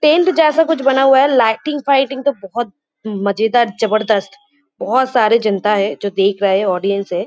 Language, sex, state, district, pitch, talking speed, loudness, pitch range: Hindi, female, West Bengal, Kolkata, 230 Hz, 180 wpm, -15 LUFS, 200-275 Hz